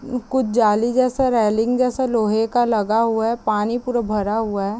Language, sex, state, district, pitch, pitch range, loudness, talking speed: Hindi, female, Chhattisgarh, Raigarh, 230 Hz, 215-245 Hz, -19 LUFS, 200 wpm